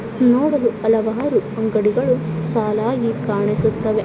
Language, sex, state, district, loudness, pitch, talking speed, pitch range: Kannada, female, Karnataka, Dakshina Kannada, -18 LUFS, 220 Hz, 75 wpm, 215-240 Hz